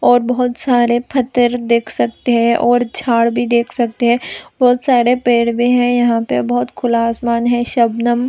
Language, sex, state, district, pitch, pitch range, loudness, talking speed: Hindi, female, Chhattisgarh, Raigarh, 240 Hz, 235-245 Hz, -15 LUFS, 180 wpm